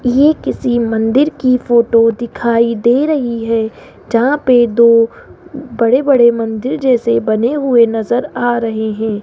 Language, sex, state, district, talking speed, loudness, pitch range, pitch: Hindi, female, Rajasthan, Jaipur, 145 wpm, -13 LUFS, 230-255 Hz, 235 Hz